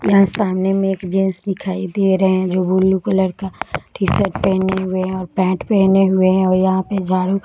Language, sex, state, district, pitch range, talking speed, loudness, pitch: Hindi, female, Jharkhand, Jamtara, 185-195 Hz, 235 wpm, -17 LUFS, 190 Hz